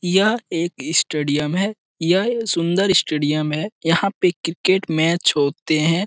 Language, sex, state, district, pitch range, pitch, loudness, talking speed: Hindi, male, Bihar, Jamui, 155-190 Hz, 170 Hz, -19 LUFS, 140 wpm